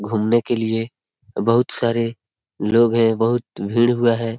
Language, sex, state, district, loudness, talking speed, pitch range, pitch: Hindi, male, Bihar, Araria, -19 LUFS, 150 wpm, 110-120 Hz, 115 Hz